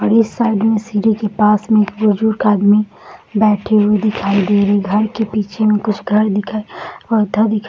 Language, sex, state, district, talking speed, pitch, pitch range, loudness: Hindi, female, Bihar, Saharsa, 225 wpm, 210 Hz, 210-220 Hz, -15 LUFS